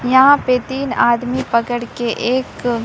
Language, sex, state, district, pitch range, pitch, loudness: Hindi, female, Bihar, Katihar, 240-260 Hz, 250 Hz, -16 LUFS